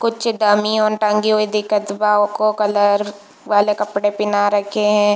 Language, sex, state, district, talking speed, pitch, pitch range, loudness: Hindi, female, Chhattisgarh, Bilaspur, 160 wpm, 210 Hz, 205-215 Hz, -17 LUFS